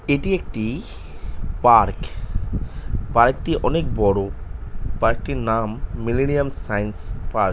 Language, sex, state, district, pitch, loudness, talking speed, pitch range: Bengali, male, West Bengal, North 24 Parganas, 110 Hz, -21 LUFS, 125 wpm, 100-120 Hz